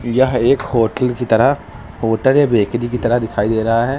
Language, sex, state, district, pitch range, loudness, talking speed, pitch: Hindi, male, Uttar Pradesh, Lucknow, 115-125 Hz, -16 LUFS, 210 wpm, 120 Hz